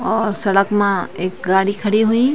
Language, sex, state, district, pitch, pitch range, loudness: Garhwali, female, Uttarakhand, Tehri Garhwal, 205 Hz, 195-220 Hz, -17 LUFS